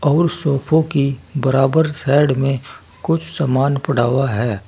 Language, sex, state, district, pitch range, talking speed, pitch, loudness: Hindi, male, Uttar Pradesh, Saharanpur, 135-155 Hz, 140 wpm, 140 Hz, -17 LUFS